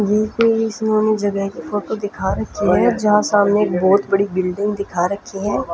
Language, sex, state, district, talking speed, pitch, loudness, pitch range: Hindi, female, Punjab, Fazilka, 180 wpm, 205 Hz, -18 LUFS, 195-215 Hz